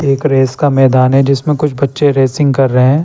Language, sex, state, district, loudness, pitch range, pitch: Hindi, male, Chandigarh, Chandigarh, -11 LUFS, 130-145 Hz, 135 Hz